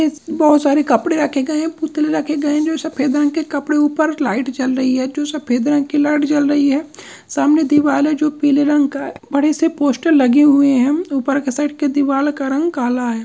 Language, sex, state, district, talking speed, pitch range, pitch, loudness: Hindi, male, Uttar Pradesh, Jyotiba Phule Nagar, 230 wpm, 275-305 Hz, 290 Hz, -16 LUFS